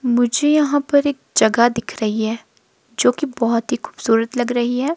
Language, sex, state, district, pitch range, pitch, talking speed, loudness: Hindi, female, Himachal Pradesh, Shimla, 230-285 Hz, 245 Hz, 195 wpm, -18 LUFS